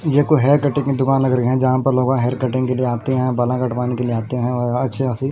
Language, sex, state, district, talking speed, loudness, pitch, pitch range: Hindi, male, Punjab, Kapurthala, 295 wpm, -18 LUFS, 130 Hz, 125-135 Hz